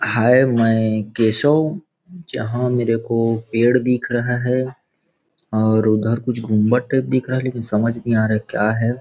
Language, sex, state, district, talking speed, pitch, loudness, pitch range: Hindi, male, Chhattisgarh, Rajnandgaon, 175 wpm, 120 Hz, -18 LUFS, 110-125 Hz